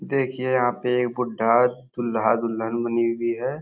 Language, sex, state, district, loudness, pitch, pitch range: Hindi, male, Bihar, Supaul, -23 LUFS, 120 Hz, 115-125 Hz